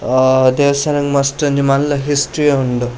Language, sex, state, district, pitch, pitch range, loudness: Tulu, male, Karnataka, Dakshina Kannada, 140 Hz, 130-145 Hz, -14 LUFS